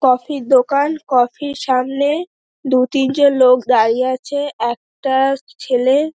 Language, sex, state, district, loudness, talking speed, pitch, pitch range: Bengali, female, West Bengal, Dakshin Dinajpur, -16 LUFS, 135 wpm, 265 Hz, 255-285 Hz